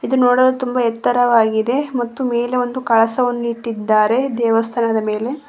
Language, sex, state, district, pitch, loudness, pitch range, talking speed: Kannada, female, Karnataka, Koppal, 240 Hz, -17 LUFS, 225-250 Hz, 120 wpm